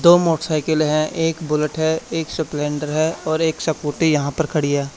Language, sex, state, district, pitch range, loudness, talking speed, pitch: Hindi, male, Haryana, Charkhi Dadri, 150-160 Hz, -20 LUFS, 195 wpm, 155 Hz